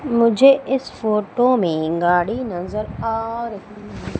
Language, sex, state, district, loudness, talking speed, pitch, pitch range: Hindi, female, Madhya Pradesh, Umaria, -19 LUFS, 115 wpm, 220 Hz, 175-240 Hz